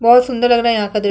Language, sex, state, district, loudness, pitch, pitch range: Hindi, female, Chhattisgarh, Kabirdham, -14 LUFS, 235 Hz, 210-245 Hz